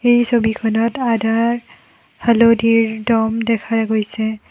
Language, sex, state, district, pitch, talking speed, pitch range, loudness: Assamese, female, Assam, Kamrup Metropolitan, 230 Hz, 95 wpm, 220-235 Hz, -17 LUFS